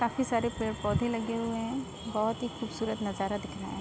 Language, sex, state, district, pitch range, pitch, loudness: Hindi, female, Uttar Pradesh, Ghazipur, 210-235 Hz, 225 Hz, -32 LUFS